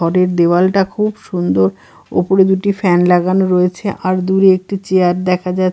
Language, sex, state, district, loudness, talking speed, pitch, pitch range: Bengali, female, Bihar, Katihar, -14 LUFS, 155 wpm, 185 Hz, 175-190 Hz